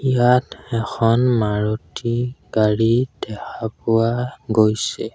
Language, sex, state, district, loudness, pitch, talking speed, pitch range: Assamese, male, Assam, Sonitpur, -20 LUFS, 115 Hz, 80 wpm, 110-125 Hz